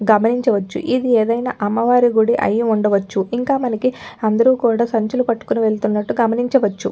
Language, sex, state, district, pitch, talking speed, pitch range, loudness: Telugu, female, Telangana, Nalgonda, 230 Hz, 95 wpm, 215-245 Hz, -17 LUFS